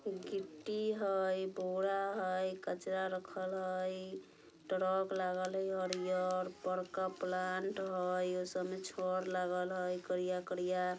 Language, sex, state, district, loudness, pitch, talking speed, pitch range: Bajjika, female, Bihar, Vaishali, -38 LUFS, 185 Hz, 125 wpm, 185-190 Hz